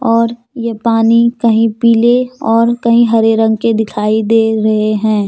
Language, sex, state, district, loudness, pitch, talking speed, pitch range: Hindi, female, Jharkhand, Deoghar, -12 LUFS, 230 Hz, 160 wpm, 220-235 Hz